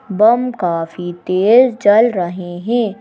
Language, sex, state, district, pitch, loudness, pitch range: Hindi, female, Madhya Pradesh, Bhopal, 205 Hz, -14 LUFS, 175-235 Hz